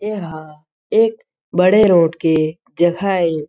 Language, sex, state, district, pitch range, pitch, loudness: Chhattisgarhi, male, Chhattisgarh, Jashpur, 160-205 Hz, 175 Hz, -16 LUFS